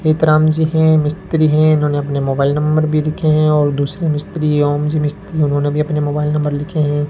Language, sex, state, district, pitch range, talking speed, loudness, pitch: Hindi, male, Rajasthan, Bikaner, 145-155 Hz, 210 wpm, -15 LUFS, 150 Hz